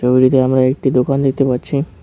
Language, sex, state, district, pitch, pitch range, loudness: Bengali, male, West Bengal, Cooch Behar, 130 Hz, 130-135 Hz, -15 LUFS